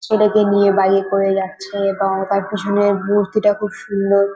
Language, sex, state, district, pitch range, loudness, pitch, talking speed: Bengali, female, West Bengal, North 24 Parganas, 195-205 Hz, -17 LUFS, 200 Hz, 165 wpm